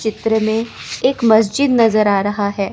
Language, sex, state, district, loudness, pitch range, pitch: Hindi, female, Chandigarh, Chandigarh, -15 LUFS, 205-230 Hz, 220 Hz